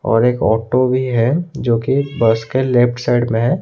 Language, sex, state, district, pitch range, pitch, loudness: Hindi, male, Odisha, Khordha, 115-130 Hz, 120 Hz, -16 LUFS